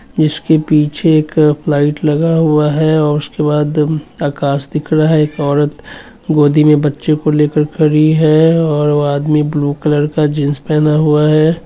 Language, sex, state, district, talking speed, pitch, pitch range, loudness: Hindi, male, Bihar, Sitamarhi, 170 wpm, 150 Hz, 150-155 Hz, -13 LUFS